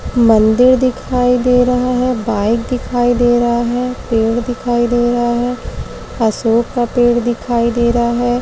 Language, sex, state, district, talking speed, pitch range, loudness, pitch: Hindi, female, Uttar Pradesh, Varanasi, 155 wpm, 235-250 Hz, -14 LUFS, 240 Hz